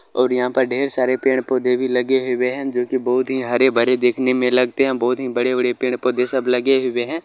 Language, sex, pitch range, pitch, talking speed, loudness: Maithili, male, 125-130 Hz, 125 Hz, 250 wpm, -18 LUFS